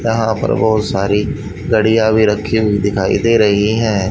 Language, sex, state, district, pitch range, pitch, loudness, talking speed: Hindi, male, Haryana, Rohtak, 105-110 Hz, 110 Hz, -14 LUFS, 175 wpm